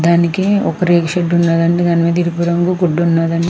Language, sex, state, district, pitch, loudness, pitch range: Telugu, female, Andhra Pradesh, Krishna, 170 Hz, -14 LUFS, 170-175 Hz